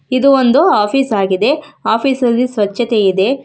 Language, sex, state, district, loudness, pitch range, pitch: Kannada, female, Karnataka, Bangalore, -13 LUFS, 210-270 Hz, 245 Hz